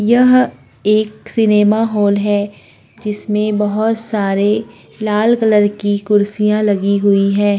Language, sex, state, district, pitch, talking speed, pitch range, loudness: Hindi, female, Uttarakhand, Tehri Garhwal, 210 Hz, 120 wpm, 205-215 Hz, -15 LUFS